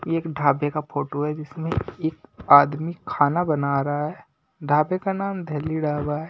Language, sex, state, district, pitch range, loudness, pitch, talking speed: Hindi, male, Delhi, New Delhi, 145-165 Hz, -23 LUFS, 150 Hz, 180 wpm